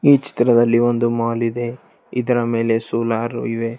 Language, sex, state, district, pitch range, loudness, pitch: Kannada, male, Karnataka, Bidar, 115-120 Hz, -19 LUFS, 115 Hz